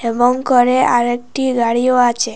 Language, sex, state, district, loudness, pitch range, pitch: Bengali, female, Assam, Hailakandi, -14 LUFS, 240-255 Hz, 245 Hz